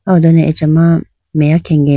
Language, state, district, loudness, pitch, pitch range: Idu Mishmi, Arunachal Pradesh, Lower Dibang Valley, -11 LUFS, 160 Hz, 155-165 Hz